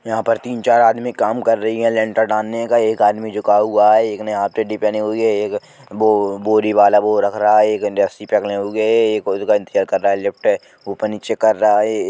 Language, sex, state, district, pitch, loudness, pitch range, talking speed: Bundeli, male, Uttar Pradesh, Jalaun, 110 Hz, -16 LUFS, 105-110 Hz, 195 wpm